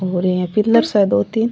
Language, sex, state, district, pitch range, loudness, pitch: Rajasthani, female, Rajasthan, Churu, 180-225 Hz, -16 LUFS, 200 Hz